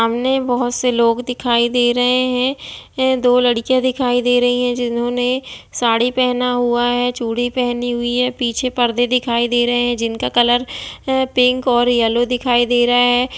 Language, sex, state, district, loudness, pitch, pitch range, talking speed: Hindi, female, Bihar, East Champaran, -16 LUFS, 245 Hz, 240-250 Hz, 165 wpm